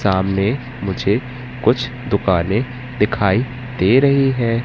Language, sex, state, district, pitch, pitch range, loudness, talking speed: Hindi, male, Madhya Pradesh, Katni, 120 Hz, 100-125 Hz, -18 LUFS, 105 wpm